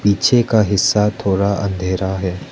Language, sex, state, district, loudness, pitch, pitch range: Hindi, male, Arunachal Pradesh, Lower Dibang Valley, -16 LUFS, 100 Hz, 95-105 Hz